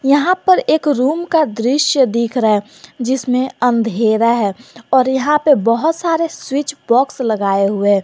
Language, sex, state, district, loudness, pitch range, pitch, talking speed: Hindi, female, Jharkhand, Garhwa, -15 LUFS, 230-290 Hz, 255 Hz, 165 wpm